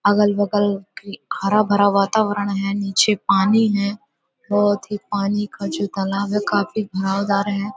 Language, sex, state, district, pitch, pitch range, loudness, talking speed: Hindi, female, Uttar Pradesh, Hamirpur, 205 Hz, 200-210 Hz, -19 LUFS, 145 wpm